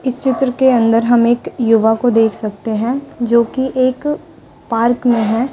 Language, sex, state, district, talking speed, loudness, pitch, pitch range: Hindi, female, Delhi, New Delhi, 185 wpm, -15 LUFS, 240 Hz, 230-260 Hz